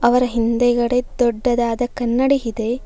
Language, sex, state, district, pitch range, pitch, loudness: Kannada, female, Karnataka, Bangalore, 235-250 Hz, 240 Hz, -18 LUFS